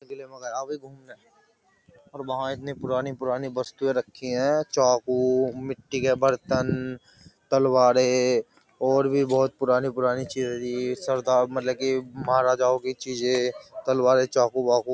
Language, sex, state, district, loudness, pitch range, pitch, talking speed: Hindi, male, Uttar Pradesh, Jyotiba Phule Nagar, -24 LUFS, 125-135 Hz, 130 Hz, 115 wpm